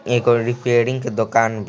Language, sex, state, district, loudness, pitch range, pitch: Bhojpuri, male, Bihar, East Champaran, -18 LUFS, 115-120 Hz, 120 Hz